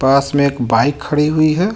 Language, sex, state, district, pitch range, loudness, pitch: Hindi, male, Jharkhand, Ranchi, 135-155 Hz, -15 LUFS, 140 Hz